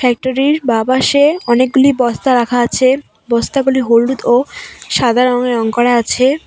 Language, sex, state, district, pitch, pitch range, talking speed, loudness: Bengali, female, West Bengal, Cooch Behar, 250 Hz, 240-265 Hz, 140 wpm, -13 LUFS